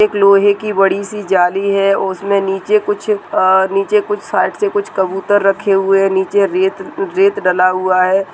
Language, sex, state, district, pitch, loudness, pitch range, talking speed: Hindi, male, Rajasthan, Churu, 195 Hz, -14 LUFS, 190-205 Hz, 185 wpm